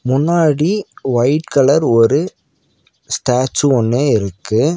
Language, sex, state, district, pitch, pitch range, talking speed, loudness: Tamil, male, Tamil Nadu, Nilgiris, 130 Hz, 115-150 Hz, 90 wpm, -15 LUFS